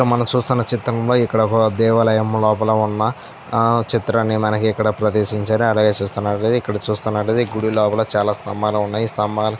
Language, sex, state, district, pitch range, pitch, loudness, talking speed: Telugu, male, Andhra Pradesh, Anantapur, 105-115 Hz, 110 Hz, -18 LUFS, 165 wpm